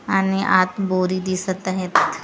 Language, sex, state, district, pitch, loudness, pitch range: Marathi, female, Maharashtra, Gondia, 185 Hz, -20 LUFS, 185-195 Hz